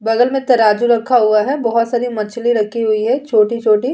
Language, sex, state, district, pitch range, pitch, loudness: Hindi, female, Uttar Pradesh, Jalaun, 215-245 Hz, 230 Hz, -15 LUFS